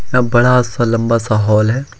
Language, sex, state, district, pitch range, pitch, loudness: Hindi, male, Jharkhand, Ranchi, 110-125 Hz, 115 Hz, -14 LUFS